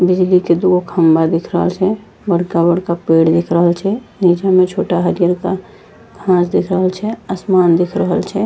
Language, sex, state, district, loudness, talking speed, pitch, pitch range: Angika, female, Bihar, Bhagalpur, -14 LUFS, 170 wpm, 180 Hz, 175-190 Hz